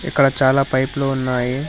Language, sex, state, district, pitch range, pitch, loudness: Telugu, male, Telangana, Hyderabad, 130-140 Hz, 135 Hz, -17 LUFS